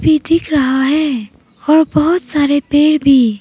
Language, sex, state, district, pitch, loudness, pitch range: Hindi, female, Arunachal Pradesh, Papum Pare, 295 Hz, -13 LUFS, 270-310 Hz